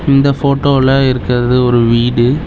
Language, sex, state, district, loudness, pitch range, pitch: Tamil, male, Tamil Nadu, Chennai, -11 LUFS, 125-140 Hz, 130 Hz